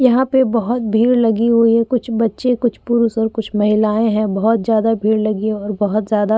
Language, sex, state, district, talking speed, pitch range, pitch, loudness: Hindi, female, Uttar Pradesh, Jyotiba Phule Nagar, 225 wpm, 215-235 Hz, 225 Hz, -16 LUFS